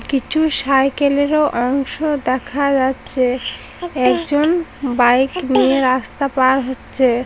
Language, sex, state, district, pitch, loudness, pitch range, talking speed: Bengali, female, West Bengal, Paschim Medinipur, 270 Hz, -17 LUFS, 255-285 Hz, 105 wpm